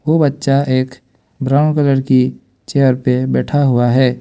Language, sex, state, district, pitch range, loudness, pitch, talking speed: Hindi, male, Arunachal Pradesh, Lower Dibang Valley, 130-140 Hz, -14 LUFS, 130 Hz, 155 wpm